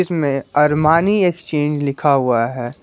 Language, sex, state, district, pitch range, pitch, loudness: Hindi, male, Jharkhand, Garhwa, 135-160 Hz, 150 Hz, -17 LUFS